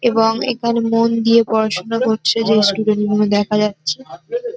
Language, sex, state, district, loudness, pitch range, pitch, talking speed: Bengali, female, West Bengal, North 24 Parganas, -16 LUFS, 210-230 Hz, 225 Hz, 145 wpm